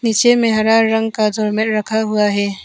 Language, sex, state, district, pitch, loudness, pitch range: Hindi, female, Arunachal Pradesh, Papum Pare, 220 Hz, -15 LUFS, 210-225 Hz